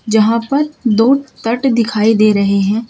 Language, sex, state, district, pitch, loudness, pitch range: Hindi, female, Uttar Pradesh, Shamli, 225 Hz, -13 LUFS, 215-260 Hz